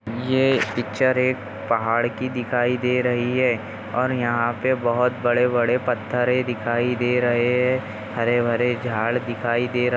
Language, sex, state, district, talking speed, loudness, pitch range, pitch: Hindi, male, Maharashtra, Nagpur, 155 wpm, -22 LUFS, 120-125 Hz, 120 Hz